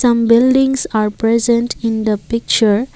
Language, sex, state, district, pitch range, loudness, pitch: English, female, Assam, Kamrup Metropolitan, 220-245 Hz, -14 LUFS, 230 Hz